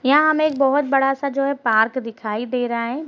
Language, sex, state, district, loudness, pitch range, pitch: Hindi, female, Uttar Pradesh, Deoria, -19 LUFS, 235-280 Hz, 270 Hz